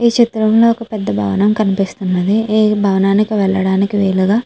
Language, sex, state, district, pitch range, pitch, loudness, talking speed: Telugu, female, Andhra Pradesh, Chittoor, 195-215 Hz, 205 Hz, -14 LUFS, 135 wpm